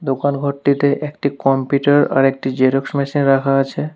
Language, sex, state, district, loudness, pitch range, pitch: Bengali, male, West Bengal, Alipurduar, -16 LUFS, 135-140 Hz, 140 Hz